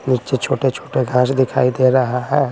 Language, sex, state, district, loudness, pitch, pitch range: Hindi, male, Bihar, Patna, -17 LUFS, 130 Hz, 125-135 Hz